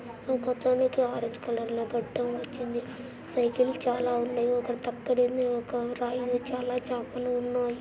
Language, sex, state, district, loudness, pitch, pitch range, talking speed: Telugu, female, Andhra Pradesh, Anantapur, -30 LUFS, 245 Hz, 240-250 Hz, 130 wpm